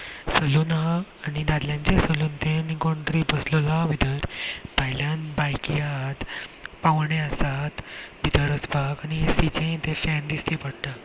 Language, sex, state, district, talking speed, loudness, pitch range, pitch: Konkani, male, Goa, North and South Goa, 140 wpm, -25 LUFS, 145-160 Hz, 155 Hz